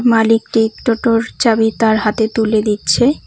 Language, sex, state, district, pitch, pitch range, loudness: Bengali, female, West Bengal, Cooch Behar, 225 Hz, 220-230 Hz, -14 LUFS